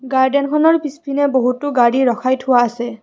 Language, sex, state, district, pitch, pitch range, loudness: Assamese, female, Assam, Kamrup Metropolitan, 260 Hz, 245-285 Hz, -16 LUFS